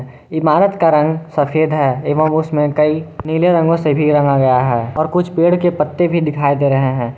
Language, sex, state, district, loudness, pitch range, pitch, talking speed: Hindi, male, Jharkhand, Garhwa, -15 LUFS, 140-160 Hz, 155 Hz, 210 wpm